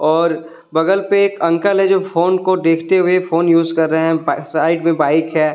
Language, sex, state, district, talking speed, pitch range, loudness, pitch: Hindi, male, Delhi, New Delhi, 215 wpm, 160-185 Hz, -15 LUFS, 165 Hz